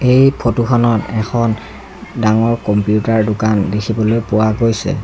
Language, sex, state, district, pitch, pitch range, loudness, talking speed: Assamese, male, Assam, Sonitpur, 115 Hz, 110-120 Hz, -15 LUFS, 105 wpm